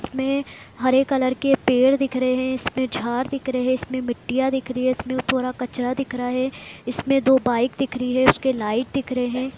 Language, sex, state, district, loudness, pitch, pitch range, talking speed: Hindi, female, Bihar, Gopalganj, -22 LUFS, 255 Hz, 250-265 Hz, 220 wpm